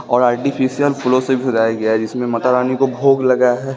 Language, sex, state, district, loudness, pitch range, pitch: Hindi, male, Bihar, West Champaran, -16 LUFS, 120-130 Hz, 125 Hz